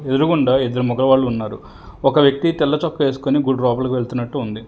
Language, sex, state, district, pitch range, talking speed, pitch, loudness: Telugu, male, Telangana, Hyderabad, 120-140 Hz, 165 wpm, 130 Hz, -18 LUFS